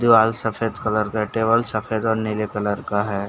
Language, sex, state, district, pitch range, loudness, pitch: Hindi, male, Chhattisgarh, Bastar, 105-115 Hz, -21 LUFS, 110 Hz